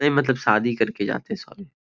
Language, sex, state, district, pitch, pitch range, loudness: Hindi, male, Bihar, Gopalganj, 135 Hz, 115-155 Hz, -23 LUFS